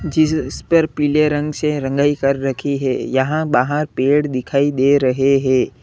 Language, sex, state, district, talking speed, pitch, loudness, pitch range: Hindi, male, Uttar Pradesh, Lalitpur, 175 wpm, 140 Hz, -17 LUFS, 135-150 Hz